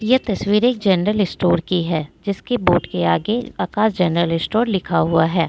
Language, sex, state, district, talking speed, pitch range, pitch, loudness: Hindi, female, Jharkhand, Deoghar, 185 wpm, 170-215 Hz, 185 Hz, -19 LUFS